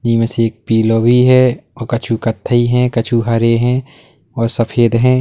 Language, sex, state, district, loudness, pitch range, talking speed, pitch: Hindi, male, Uttar Pradesh, Lalitpur, -14 LUFS, 115-125 Hz, 185 wpm, 115 Hz